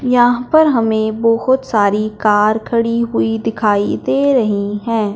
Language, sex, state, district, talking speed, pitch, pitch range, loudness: Hindi, male, Punjab, Fazilka, 140 wpm, 225 Hz, 210-240 Hz, -15 LUFS